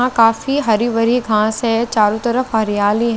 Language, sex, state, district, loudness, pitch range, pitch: Hindi, female, Chandigarh, Chandigarh, -16 LUFS, 220-240 Hz, 230 Hz